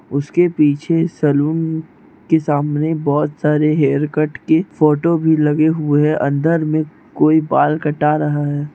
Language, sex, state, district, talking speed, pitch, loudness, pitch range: Hindi, male, Chhattisgarh, Raigarh, 145 wpm, 150 Hz, -16 LUFS, 150-160 Hz